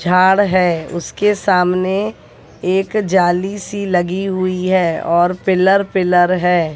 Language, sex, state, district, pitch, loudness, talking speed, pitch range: Hindi, female, Haryana, Jhajjar, 185 Hz, -15 LUFS, 125 wpm, 180-195 Hz